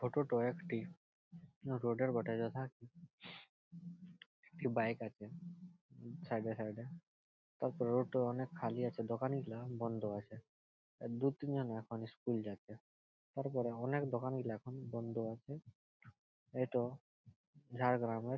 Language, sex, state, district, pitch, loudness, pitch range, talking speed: Bengali, male, West Bengal, Jhargram, 125 Hz, -41 LUFS, 115-135 Hz, 140 wpm